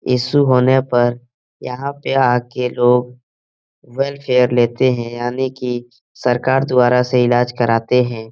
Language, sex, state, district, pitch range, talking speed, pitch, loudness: Hindi, male, Bihar, Jahanabad, 120-125 Hz, 130 wpm, 125 Hz, -16 LUFS